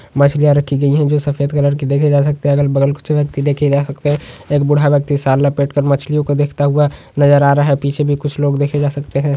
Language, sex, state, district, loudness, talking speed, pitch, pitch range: Hindi, male, Bihar, Jahanabad, -14 LUFS, 265 wpm, 145 Hz, 140-145 Hz